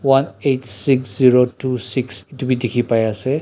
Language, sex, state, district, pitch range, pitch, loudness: Nagamese, male, Nagaland, Dimapur, 120-135 Hz, 130 Hz, -18 LUFS